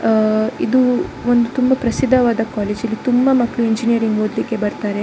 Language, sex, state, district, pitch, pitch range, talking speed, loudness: Kannada, female, Karnataka, Dakshina Kannada, 230 Hz, 220-245 Hz, 145 wpm, -17 LUFS